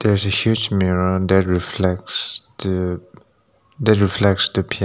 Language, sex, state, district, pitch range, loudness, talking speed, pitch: English, male, Nagaland, Dimapur, 90-100 Hz, -17 LUFS, 150 wpm, 95 Hz